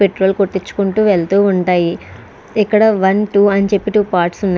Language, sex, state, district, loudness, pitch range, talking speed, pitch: Telugu, female, Andhra Pradesh, Krishna, -14 LUFS, 190-205 Hz, 155 wpm, 200 Hz